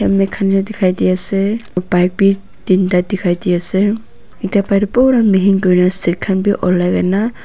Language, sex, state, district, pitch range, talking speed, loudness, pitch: Nagamese, female, Nagaland, Dimapur, 180-200 Hz, 185 wpm, -14 LUFS, 195 Hz